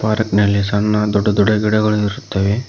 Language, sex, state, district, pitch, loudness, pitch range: Kannada, male, Karnataka, Koppal, 105 Hz, -16 LUFS, 100-110 Hz